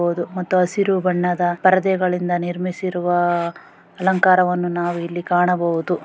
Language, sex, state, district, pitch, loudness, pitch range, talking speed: Kannada, female, Karnataka, Gulbarga, 180 Hz, -19 LUFS, 175-185 Hz, 110 wpm